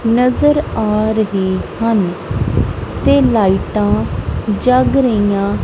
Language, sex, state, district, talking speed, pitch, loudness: Punjabi, female, Punjab, Kapurthala, 95 wpm, 185 Hz, -15 LUFS